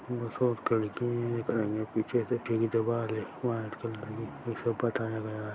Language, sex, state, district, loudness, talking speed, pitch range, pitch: Hindi, male, Chhattisgarh, Sarguja, -32 LUFS, 140 wpm, 110-120 Hz, 115 Hz